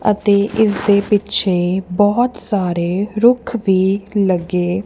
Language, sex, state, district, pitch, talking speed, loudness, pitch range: Punjabi, female, Punjab, Kapurthala, 200 Hz, 110 wpm, -16 LUFS, 185-210 Hz